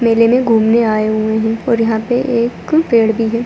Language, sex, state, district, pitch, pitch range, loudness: Hindi, female, Bihar, Muzaffarpur, 230 Hz, 220-240 Hz, -14 LUFS